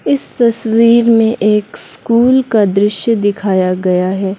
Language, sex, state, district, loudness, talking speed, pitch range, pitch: Hindi, female, Mizoram, Aizawl, -12 LUFS, 135 wpm, 195-230 Hz, 215 Hz